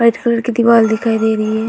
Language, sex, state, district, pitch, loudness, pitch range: Hindi, female, Uttar Pradesh, Budaun, 225 Hz, -14 LUFS, 220-235 Hz